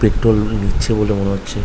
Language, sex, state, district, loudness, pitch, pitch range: Bengali, male, West Bengal, Malda, -17 LUFS, 105 Hz, 100-110 Hz